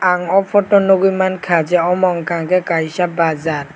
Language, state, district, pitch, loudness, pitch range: Kokborok, Tripura, West Tripura, 180 Hz, -15 LUFS, 165-190 Hz